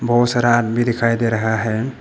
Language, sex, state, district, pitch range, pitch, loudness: Hindi, male, Arunachal Pradesh, Papum Pare, 115-120 Hz, 120 Hz, -17 LUFS